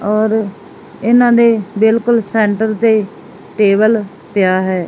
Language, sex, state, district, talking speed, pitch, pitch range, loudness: Punjabi, female, Punjab, Fazilka, 110 wpm, 215 Hz, 200-225 Hz, -13 LUFS